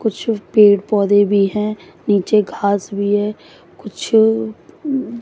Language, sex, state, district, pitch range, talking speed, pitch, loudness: Hindi, female, Haryana, Jhajjar, 205-225 Hz, 115 wpm, 210 Hz, -16 LUFS